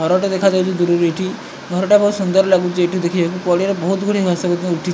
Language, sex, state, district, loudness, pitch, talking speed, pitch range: Odia, male, Odisha, Malkangiri, -16 LUFS, 185 Hz, 205 wpm, 175-195 Hz